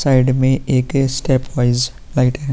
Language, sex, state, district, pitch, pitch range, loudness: Hindi, male, Uttar Pradesh, Jalaun, 130 Hz, 125-135 Hz, -17 LUFS